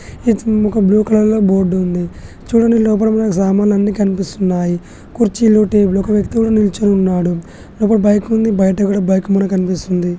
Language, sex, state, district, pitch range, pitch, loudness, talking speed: Telugu, male, Telangana, Nalgonda, 190-215 Hz, 205 Hz, -14 LUFS, 165 wpm